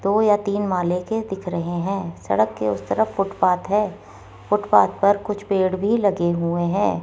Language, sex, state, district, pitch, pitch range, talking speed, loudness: Hindi, female, Rajasthan, Jaipur, 195 Hz, 175-205 Hz, 190 wpm, -21 LUFS